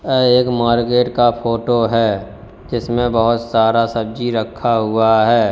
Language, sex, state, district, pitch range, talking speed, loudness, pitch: Hindi, male, Uttar Pradesh, Lalitpur, 110-120 Hz, 140 wpm, -16 LUFS, 115 Hz